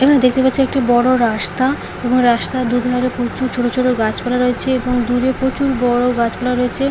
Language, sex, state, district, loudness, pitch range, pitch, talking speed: Bengali, female, West Bengal, Paschim Medinipur, -16 LUFS, 245-260 Hz, 250 Hz, 180 wpm